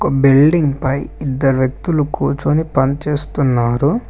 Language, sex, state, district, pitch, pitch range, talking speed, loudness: Telugu, male, Telangana, Mahabubabad, 140 Hz, 135-150 Hz, 100 wpm, -16 LUFS